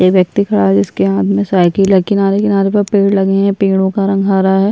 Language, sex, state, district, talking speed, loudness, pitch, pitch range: Hindi, female, Uttarakhand, Tehri Garhwal, 255 wpm, -12 LUFS, 195 Hz, 180-200 Hz